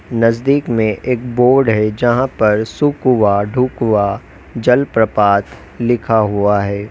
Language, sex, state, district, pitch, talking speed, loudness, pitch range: Hindi, male, Uttar Pradesh, Lalitpur, 115 Hz, 115 wpm, -14 LUFS, 105-125 Hz